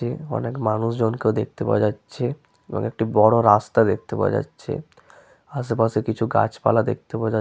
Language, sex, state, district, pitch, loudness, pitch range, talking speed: Bengali, male, West Bengal, Malda, 110 Hz, -22 LUFS, 110-120 Hz, 155 wpm